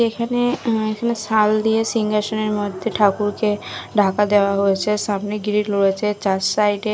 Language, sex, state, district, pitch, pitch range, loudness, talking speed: Bengali, female, Odisha, Khordha, 210 Hz, 205-220 Hz, -19 LUFS, 140 wpm